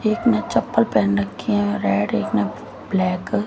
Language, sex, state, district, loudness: Hindi, female, Haryana, Jhajjar, -20 LUFS